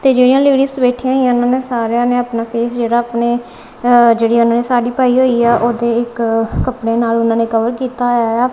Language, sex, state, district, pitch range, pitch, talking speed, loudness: Punjabi, female, Punjab, Kapurthala, 235-250 Hz, 240 Hz, 230 wpm, -14 LUFS